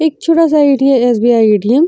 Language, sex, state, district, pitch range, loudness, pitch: Hindi, female, Chhattisgarh, Korba, 240-315 Hz, -10 LUFS, 275 Hz